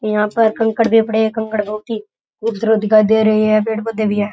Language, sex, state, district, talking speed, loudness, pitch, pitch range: Rajasthani, male, Rajasthan, Nagaur, 235 wpm, -16 LUFS, 220 Hz, 215-225 Hz